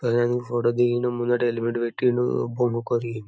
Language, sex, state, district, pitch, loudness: Telugu, male, Telangana, Karimnagar, 120 Hz, -24 LUFS